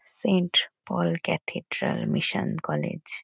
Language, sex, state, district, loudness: Bengali, female, West Bengal, Kolkata, -26 LUFS